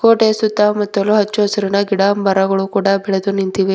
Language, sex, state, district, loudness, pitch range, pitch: Kannada, female, Karnataka, Bidar, -15 LUFS, 195-210 Hz, 200 Hz